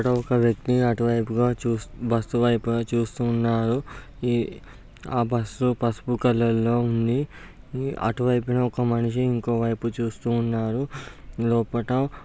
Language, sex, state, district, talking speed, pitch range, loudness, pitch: Telugu, male, Andhra Pradesh, Guntur, 115 wpm, 115-125 Hz, -24 LUFS, 120 Hz